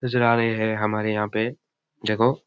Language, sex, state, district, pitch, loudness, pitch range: Rajasthani, male, Rajasthan, Churu, 110 Hz, -23 LUFS, 110-115 Hz